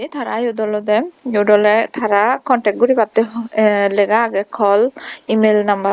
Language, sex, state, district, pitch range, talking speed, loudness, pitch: Chakma, female, Tripura, Dhalai, 210-240 Hz, 140 wpm, -15 LUFS, 215 Hz